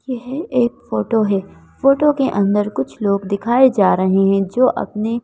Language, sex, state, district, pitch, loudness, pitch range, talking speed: Hindi, female, Madhya Pradesh, Bhopal, 220 Hz, -17 LUFS, 200-255 Hz, 170 wpm